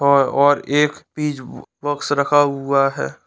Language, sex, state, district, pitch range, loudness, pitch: Hindi, male, Bihar, Saharsa, 140-145 Hz, -18 LUFS, 145 Hz